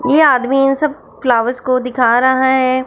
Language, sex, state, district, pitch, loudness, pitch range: Hindi, female, Punjab, Fazilka, 260 Hz, -14 LUFS, 250-270 Hz